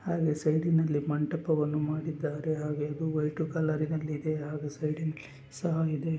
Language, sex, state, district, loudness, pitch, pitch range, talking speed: Kannada, male, Karnataka, Gulbarga, -31 LUFS, 155 Hz, 150-160 Hz, 125 wpm